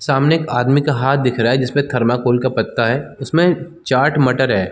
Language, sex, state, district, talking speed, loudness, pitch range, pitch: Hindi, male, Chhattisgarh, Balrampur, 215 wpm, -16 LUFS, 120-145 Hz, 130 Hz